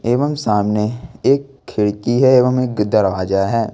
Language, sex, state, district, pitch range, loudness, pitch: Hindi, male, Jharkhand, Ranchi, 105-130 Hz, -16 LUFS, 115 Hz